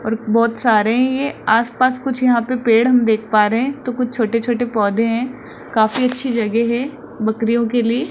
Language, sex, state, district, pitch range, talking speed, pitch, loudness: Hindi, male, Rajasthan, Jaipur, 225-255 Hz, 220 wpm, 235 Hz, -17 LUFS